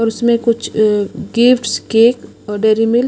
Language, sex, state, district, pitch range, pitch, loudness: Hindi, female, Odisha, Sambalpur, 220-235 Hz, 225 Hz, -14 LUFS